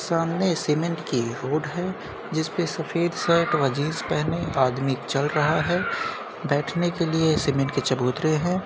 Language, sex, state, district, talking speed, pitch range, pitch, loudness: Hindi, male, Uttar Pradesh, Jyotiba Phule Nagar, 160 wpm, 140-170 Hz, 155 Hz, -24 LUFS